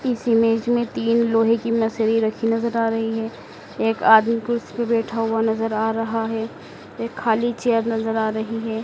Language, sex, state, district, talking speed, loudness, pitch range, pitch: Hindi, female, Madhya Pradesh, Dhar, 190 wpm, -21 LUFS, 225-230 Hz, 225 Hz